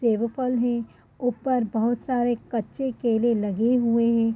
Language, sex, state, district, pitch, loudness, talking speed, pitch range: Hindi, female, Uttar Pradesh, Gorakhpur, 235 Hz, -24 LUFS, 140 wpm, 230-245 Hz